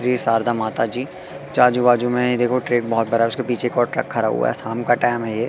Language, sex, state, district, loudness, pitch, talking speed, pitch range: Hindi, male, Madhya Pradesh, Katni, -19 LUFS, 120 Hz, 260 wpm, 115-125 Hz